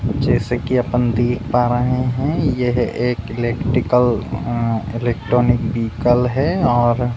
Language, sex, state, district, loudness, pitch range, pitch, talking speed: Hindi, male, Uttar Pradesh, Budaun, -18 LUFS, 120-125 Hz, 120 Hz, 135 wpm